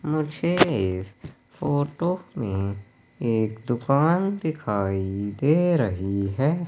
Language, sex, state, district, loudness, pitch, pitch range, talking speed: Hindi, male, Madhya Pradesh, Katni, -24 LUFS, 135 Hz, 100-165 Hz, 90 wpm